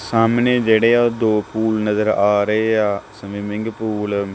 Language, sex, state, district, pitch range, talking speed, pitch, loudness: Punjabi, male, Punjab, Kapurthala, 105-115 Hz, 180 wpm, 110 Hz, -18 LUFS